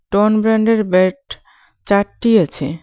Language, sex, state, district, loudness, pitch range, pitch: Bengali, female, West Bengal, Cooch Behar, -15 LUFS, 185-220 Hz, 200 Hz